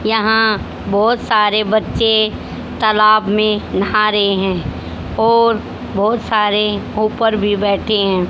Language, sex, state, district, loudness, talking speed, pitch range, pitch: Hindi, female, Haryana, Jhajjar, -15 LUFS, 115 wpm, 200-220 Hz, 215 Hz